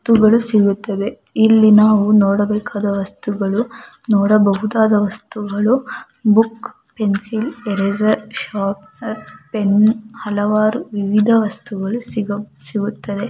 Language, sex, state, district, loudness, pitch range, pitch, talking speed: Kannada, female, Karnataka, Mysore, -17 LUFS, 205-220 Hz, 210 Hz, 85 wpm